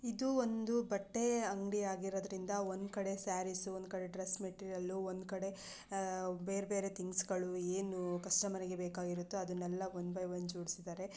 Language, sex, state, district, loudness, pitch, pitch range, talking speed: Kannada, female, Karnataka, Bijapur, -40 LUFS, 190 Hz, 185-195 Hz, 140 wpm